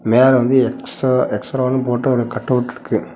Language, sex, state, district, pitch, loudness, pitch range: Tamil, male, Tamil Nadu, Namakkal, 125 Hz, -17 LUFS, 120-130 Hz